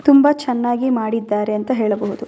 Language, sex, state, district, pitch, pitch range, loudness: Kannada, female, Karnataka, Bellary, 235 Hz, 210-260 Hz, -18 LUFS